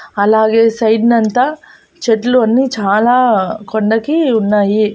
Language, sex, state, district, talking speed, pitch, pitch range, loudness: Telugu, female, Andhra Pradesh, Annamaya, 95 wpm, 225 Hz, 215-245 Hz, -12 LUFS